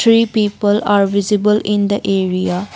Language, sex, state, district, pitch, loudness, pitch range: English, female, Assam, Kamrup Metropolitan, 205 Hz, -15 LUFS, 200-210 Hz